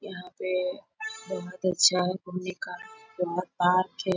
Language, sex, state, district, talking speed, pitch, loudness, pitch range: Hindi, female, Bihar, Bhagalpur, 145 wpm, 185 Hz, -28 LUFS, 180-200 Hz